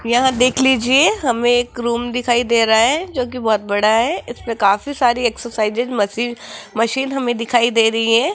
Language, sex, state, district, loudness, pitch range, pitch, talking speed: Hindi, female, Rajasthan, Jaipur, -17 LUFS, 225-250 Hz, 235 Hz, 185 wpm